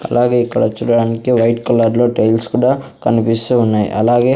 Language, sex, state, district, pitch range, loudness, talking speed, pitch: Telugu, male, Andhra Pradesh, Sri Satya Sai, 115-120 Hz, -14 LUFS, 150 wpm, 120 Hz